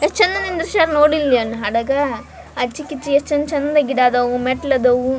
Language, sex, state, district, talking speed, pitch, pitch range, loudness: Kannada, female, Karnataka, Dharwad, 150 wpm, 285 Hz, 250-300 Hz, -17 LUFS